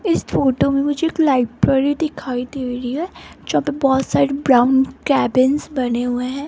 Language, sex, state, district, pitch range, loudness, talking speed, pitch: Hindi, female, Rajasthan, Jaipur, 255-290 Hz, -18 LUFS, 175 wpm, 270 Hz